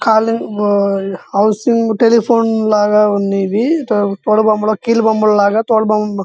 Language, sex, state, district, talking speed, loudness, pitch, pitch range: Telugu, male, Andhra Pradesh, Visakhapatnam, 125 wpm, -13 LUFS, 215 Hz, 205-225 Hz